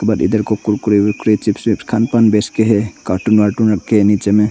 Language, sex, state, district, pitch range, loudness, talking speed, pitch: Hindi, male, Arunachal Pradesh, Longding, 105-110 Hz, -14 LUFS, 225 wpm, 105 Hz